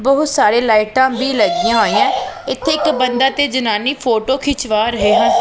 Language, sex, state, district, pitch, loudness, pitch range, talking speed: Punjabi, female, Punjab, Pathankot, 265 Hz, -15 LUFS, 235-290 Hz, 165 wpm